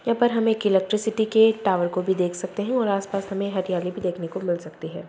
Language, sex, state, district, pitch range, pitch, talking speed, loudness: Hindi, female, Bihar, Madhepura, 180-220 Hz, 195 Hz, 200 wpm, -23 LUFS